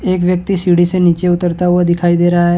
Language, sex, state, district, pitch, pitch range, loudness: Hindi, male, Uttar Pradesh, Varanasi, 175 Hz, 175-180 Hz, -13 LUFS